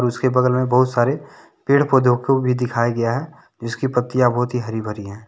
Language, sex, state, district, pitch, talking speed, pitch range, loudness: Hindi, male, Jharkhand, Deoghar, 125 Hz, 195 wpm, 120-130 Hz, -19 LUFS